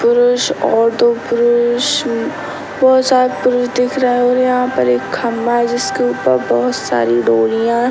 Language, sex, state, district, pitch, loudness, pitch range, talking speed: Hindi, male, Bihar, Sitamarhi, 240 Hz, -14 LUFS, 225-250 Hz, 175 wpm